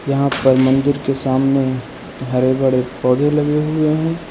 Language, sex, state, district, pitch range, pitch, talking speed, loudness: Hindi, male, Uttar Pradesh, Lucknow, 130-150 Hz, 135 Hz, 155 wpm, -16 LUFS